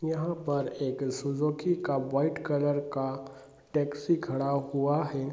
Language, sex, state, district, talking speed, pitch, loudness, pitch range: Hindi, male, Bihar, Gopalganj, 145 wpm, 140 Hz, -30 LUFS, 135-150 Hz